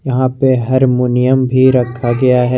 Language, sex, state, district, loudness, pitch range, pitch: Hindi, male, Jharkhand, Garhwa, -13 LUFS, 125-130 Hz, 130 Hz